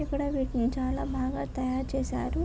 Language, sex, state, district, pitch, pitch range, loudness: Telugu, female, Andhra Pradesh, Srikakulam, 265 Hz, 260-270 Hz, -31 LUFS